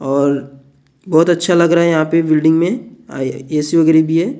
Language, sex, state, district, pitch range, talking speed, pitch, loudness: Hindi, male, Maharashtra, Gondia, 140-165 Hz, 205 wpm, 160 Hz, -14 LUFS